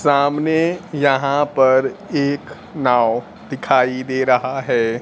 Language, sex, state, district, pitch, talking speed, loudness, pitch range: Hindi, male, Bihar, Kaimur, 135 Hz, 110 wpm, -18 LUFS, 130-145 Hz